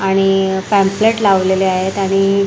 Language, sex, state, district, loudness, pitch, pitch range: Marathi, female, Maharashtra, Mumbai Suburban, -14 LUFS, 195 Hz, 190-200 Hz